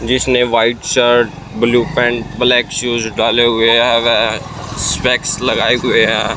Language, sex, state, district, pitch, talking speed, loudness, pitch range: Hindi, male, Haryana, Rohtak, 120 Hz, 130 wpm, -13 LUFS, 115-125 Hz